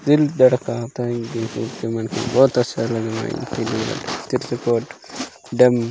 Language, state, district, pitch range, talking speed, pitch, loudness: Gondi, Chhattisgarh, Sukma, 115-125 Hz, 110 wpm, 120 Hz, -20 LUFS